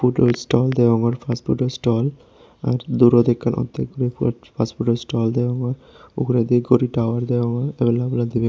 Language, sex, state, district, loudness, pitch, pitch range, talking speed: Chakma, male, Tripura, West Tripura, -20 LUFS, 120 Hz, 120-125 Hz, 155 wpm